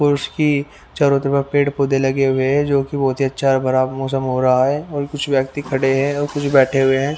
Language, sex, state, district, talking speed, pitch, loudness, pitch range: Hindi, male, Haryana, Rohtak, 240 wpm, 140 Hz, -17 LUFS, 135-145 Hz